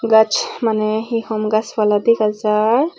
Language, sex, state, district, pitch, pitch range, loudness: Chakma, female, Tripura, Unakoti, 220 Hz, 215-230 Hz, -17 LUFS